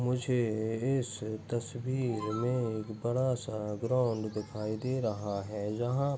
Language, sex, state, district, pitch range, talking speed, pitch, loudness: Hindi, male, Chhattisgarh, Bastar, 110-125 Hz, 135 wpm, 115 Hz, -33 LUFS